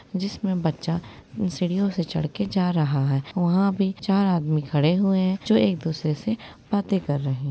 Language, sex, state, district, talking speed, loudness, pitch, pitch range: Hindi, female, Jharkhand, Sahebganj, 185 wpm, -24 LUFS, 180 Hz, 155-195 Hz